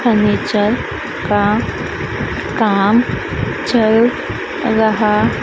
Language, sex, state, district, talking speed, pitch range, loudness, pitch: Hindi, female, Madhya Pradesh, Dhar, 55 wpm, 210-230 Hz, -16 LUFS, 220 Hz